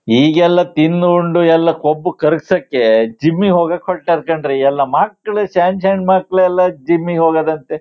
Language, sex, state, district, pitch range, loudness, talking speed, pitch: Kannada, male, Karnataka, Shimoga, 155-180 Hz, -14 LUFS, 140 wpm, 170 Hz